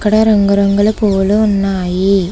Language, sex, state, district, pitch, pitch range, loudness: Telugu, female, Telangana, Hyderabad, 200 Hz, 195-210 Hz, -12 LUFS